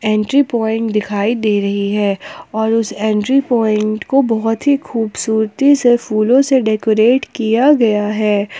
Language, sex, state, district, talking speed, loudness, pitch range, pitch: Hindi, female, Jharkhand, Palamu, 145 wpm, -15 LUFS, 215-245 Hz, 220 Hz